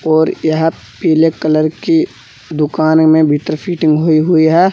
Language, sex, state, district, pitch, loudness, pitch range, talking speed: Hindi, male, Uttar Pradesh, Saharanpur, 155 Hz, -13 LUFS, 155-160 Hz, 150 wpm